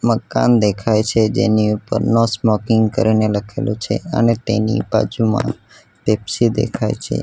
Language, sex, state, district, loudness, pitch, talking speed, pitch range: Gujarati, male, Gujarat, Valsad, -17 LUFS, 110 Hz, 135 wpm, 105-115 Hz